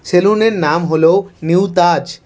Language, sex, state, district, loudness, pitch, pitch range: Bengali, male, West Bengal, Cooch Behar, -13 LUFS, 180 Hz, 165-195 Hz